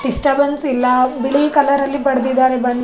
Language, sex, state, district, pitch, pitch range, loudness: Kannada, female, Karnataka, Raichur, 265 Hz, 255-280 Hz, -15 LUFS